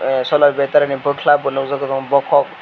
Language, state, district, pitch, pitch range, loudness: Kokborok, Tripura, West Tripura, 140 Hz, 135-145 Hz, -16 LUFS